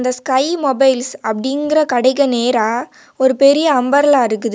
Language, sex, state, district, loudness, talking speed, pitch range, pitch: Tamil, female, Tamil Nadu, Kanyakumari, -14 LUFS, 120 wpm, 245-285 Hz, 265 Hz